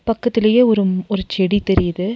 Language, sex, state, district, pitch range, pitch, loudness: Tamil, female, Tamil Nadu, Nilgiris, 190-230 Hz, 205 Hz, -16 LUFS